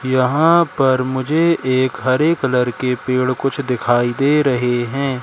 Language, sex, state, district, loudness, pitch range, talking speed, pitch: Hindi, male, Madhya Pradesh, Katni, -17 LUFS, 125-140 Hz, 150 wpm, 130 Hz